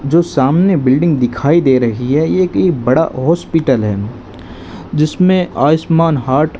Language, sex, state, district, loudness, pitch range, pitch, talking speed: Hindi, male, Rajasthan, Bikaner, -13 LUFS, 130-165 Hz, 150 Hz, 145 wpm